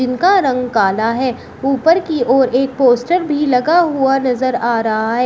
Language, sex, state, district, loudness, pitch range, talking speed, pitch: Hindi, female, Uttar Pradesh, Shamli, -14 LUFS, 245-290 Hz, 180 wpm, 260 Hz